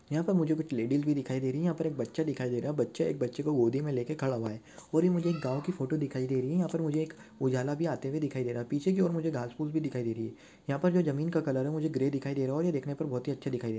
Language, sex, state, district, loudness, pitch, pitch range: Hindi, male, Maharashtra, Solapur, -31 LUFS, 140 Hz, 130-160 Hz